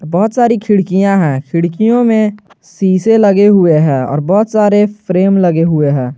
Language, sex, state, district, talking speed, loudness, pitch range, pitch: Hindi, male, Jharkhand, Garhwa, 165 wpm, -11 LUFS, 165-210 Hz, 195 Hz